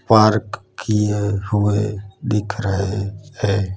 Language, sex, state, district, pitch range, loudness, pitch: Hindi, male, Gujarat, Gandhinagar, 100-105 Hz, -20 LUFS, 105 Hz